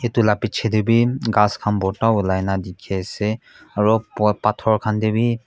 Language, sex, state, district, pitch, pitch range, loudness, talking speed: Nagamese, male, Nagaland, Kohima, 105 Hz, 105-115 Hz, -20 LUFS, 195 wpm